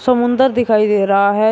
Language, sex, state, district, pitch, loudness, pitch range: Hindi, male, Uttar Pradesh, Shamli, 215 Hz, -14 LUFS, 205-245 Hz